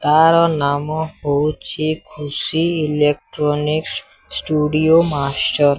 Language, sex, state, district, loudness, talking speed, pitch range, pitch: Odia, male, Odisha, Sambalpur, -18 LUFS, 85 wpm, 145-160 Hz, 150 Hz